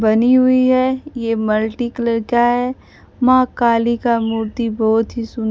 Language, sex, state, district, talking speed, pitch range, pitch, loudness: Hindi, female, Bihar, Kaimur, 165 wpm, 225-255 Hz, 235 Hz, -16 LUFS